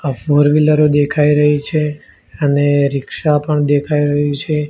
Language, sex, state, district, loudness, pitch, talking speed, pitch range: Gujarati, male, Gujarat, Gandhinagar, -14 LUFS, 145 Hz, 140 wpm, 145-150 Hz